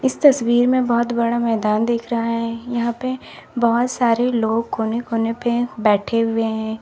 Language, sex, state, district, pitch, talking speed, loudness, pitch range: Hindi, female, Uttar Pradesh, Lalitpur, 235 Hz, 175 wpm, -19 LUFS, 225-240 Hz